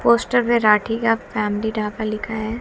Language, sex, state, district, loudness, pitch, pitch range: Hindi, female, Haryana, Jhajjar, -20 LUFS, 220 Hz, 215-235 Hz